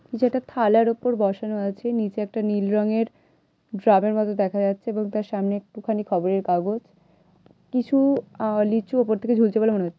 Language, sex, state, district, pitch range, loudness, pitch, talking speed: Bengali, female, West Bengal, Malda, 200-225 Hz, -23 LUFS, 215 Hz, 185 wpm